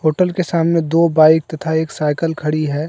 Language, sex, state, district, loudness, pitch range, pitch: Hindi, male, Jharkhand, Deoghar, -16 LUFS, 155-165 Hz, 160 Hz